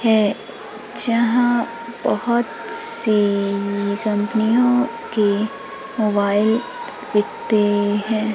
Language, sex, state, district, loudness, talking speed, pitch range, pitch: Hindi, female, Madhya Pradesh, Umaria, -17 LUFS, 65 wpm, 205-235 Hz, 220 Hz